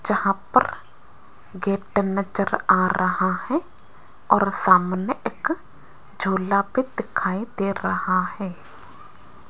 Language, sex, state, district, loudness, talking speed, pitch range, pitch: Hindi, female, Rajasthan, Jaipur, -23 LUFS, 100 wpm, 185-210 Hz, 195 Hz